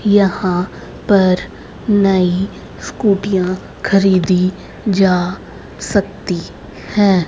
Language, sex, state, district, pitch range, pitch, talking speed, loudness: Hindi, female, Haryana, Rohtak, 185-200 Hz, 190 Hz, 65 wpm, -16 LUFS